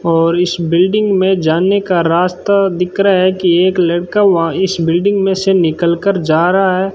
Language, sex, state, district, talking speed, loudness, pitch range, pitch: Hindi, male, Rajasthan, Bikaner, 200 wpm, -13 LUFS, 170-195 Hz, 180 Hz